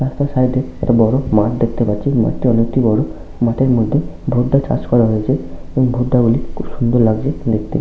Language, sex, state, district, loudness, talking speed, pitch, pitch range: Bengali, male, West Bengal, Malda, -16 LUFS, 190 wpm, 120 Hz, 115-130 Hz